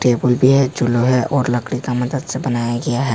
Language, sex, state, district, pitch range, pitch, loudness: Hindi, male, Jharkhand, Ranchi, 120-135 Hz, 125 Hz, -17 LUFS